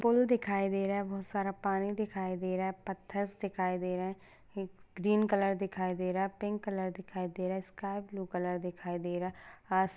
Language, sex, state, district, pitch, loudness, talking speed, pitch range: Hindi, female, Maharashtra, Sindhudurg, 195 Hz, -35 LUFS, 225 wpm, 185-200 Hz